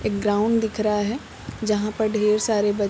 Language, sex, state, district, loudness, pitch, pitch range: Hindi, female, Bihar, Gopalganj, -22 LUFS, 215 Hz, 205-220 Hz